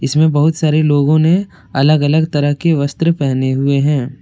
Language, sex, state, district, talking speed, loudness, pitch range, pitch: Hindi, male, Jharkhand, Deoghar, 185 wpm, -14 LUFS, 140-160 Hz, 150 Hz